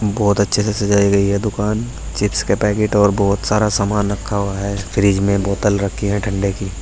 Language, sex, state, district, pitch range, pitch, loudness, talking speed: Hindi, male, Uttar Pradesh, Saharanpur, 100-105 Hz, 100 Hz, -17 LUFS, 210 wpm